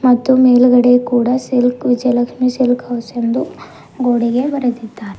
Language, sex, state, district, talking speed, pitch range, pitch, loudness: Kannada, female, Karnataka, Bidar, 125 wpm, 240-250 Hz, 245 Hz, -14 LUFS